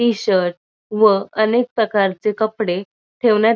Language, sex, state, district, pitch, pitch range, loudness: Marathi, female, Maharashtra, Dhule, 215 Hz, 195-225 Hz, -18 LUFS